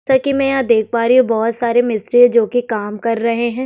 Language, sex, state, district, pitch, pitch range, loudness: Hindi, female, Chhattisgarh, Sukma, 235 Hz, 230-250 Hz, -15 LUFS